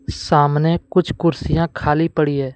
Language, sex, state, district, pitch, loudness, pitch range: Hindi, male, Jharkhand, Deoghar, 150 Hz, -18 LUFS, 145-165 Hz